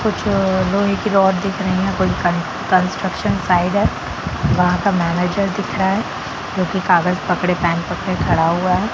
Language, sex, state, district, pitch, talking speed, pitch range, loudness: Hindi, female, Bihar, Gaya, 185 Hz, 180 wpm, 180-195 Hz, -18 LUFS